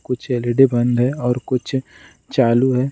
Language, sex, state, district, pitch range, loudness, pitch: Hindi, male, Bihar, Gaya, 120-130 Hz, -18 LUFS, 125 Hz